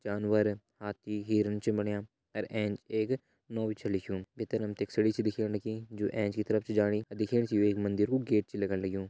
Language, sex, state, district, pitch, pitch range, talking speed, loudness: Hindi, male, Uttarakhand, Uttarkashi, 105 Hz, 100-110 Hz, 240 wpm, -32 LUFS